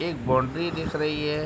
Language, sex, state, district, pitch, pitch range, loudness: Hindi, male, Uttar Pradesh, Deoria, 150 Hz, 150-165 Hz, -26 LUFS